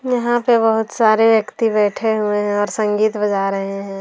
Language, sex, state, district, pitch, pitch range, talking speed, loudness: Hindi, female, Bihar, Darbhanga, 215 Hz, 205-225 Hz, 195 wpm, -17 LUFS